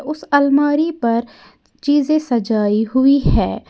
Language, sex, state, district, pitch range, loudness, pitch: Hindi, female, Uttar Pradesh, Lalitpur, 235-290 Hz, -16 LUFS, 280 Hz